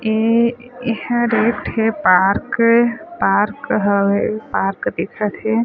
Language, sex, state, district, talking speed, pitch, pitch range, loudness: Chhattisgarhi, female, Chhattisgarh, Sarguja, 115 wpm, 225 Hz, 210-235 Hz, -17 LUFS